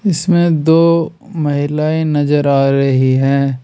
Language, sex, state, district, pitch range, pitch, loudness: Hindi, male, Rajasthan, Jaipur, 140-165 Hz, 150 Hz, -13 LUFS